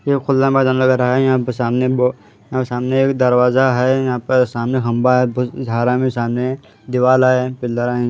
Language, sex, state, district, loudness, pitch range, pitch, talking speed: Hindi, male, Haryana, Charkhi Dadri, -16 LUFS, 125-130 Hz, 125 Hz, 190 wpm